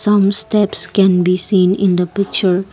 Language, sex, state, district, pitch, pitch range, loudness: English, female, Assam, Kamrup Metropolitan, 195 Hz, 180-200 Hz, -14 LUFS